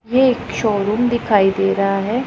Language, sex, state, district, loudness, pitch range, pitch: Hindi, female, Punjab, Pathankot, -17 LUFS, 200-240 Hz, 220 Hz